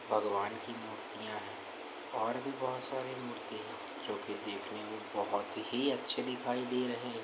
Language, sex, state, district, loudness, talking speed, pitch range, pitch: Hindi, male, Uttar Pradesh, Varanasi, -38 LUFS, 180 wpm, 120-130 Hz, 125 Hz